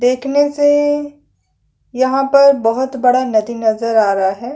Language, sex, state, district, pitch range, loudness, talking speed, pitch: Hindi, female, Chhattisgarh, Sukma, 230-280 Hz, -14 LUFS, 145 wpm, 260 Hz